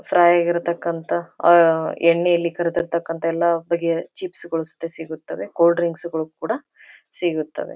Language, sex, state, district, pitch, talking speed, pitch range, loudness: Kannada, female, Karnataka, Dharwad, 170 Hz, 115 wpm, 165-170 Hz, -19 LUFS